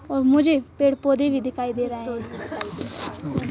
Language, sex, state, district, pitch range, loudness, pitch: Hindi, female, Madhya Pradesh, Bhopal, 245-280 Hz, -23 LUFS, 270 Hz